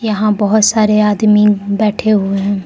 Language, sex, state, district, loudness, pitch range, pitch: Hindi, female, Arunachal Pradesh, Lower Dibang Valley, -12 LUFS, 205-215 Hz, 210 Hz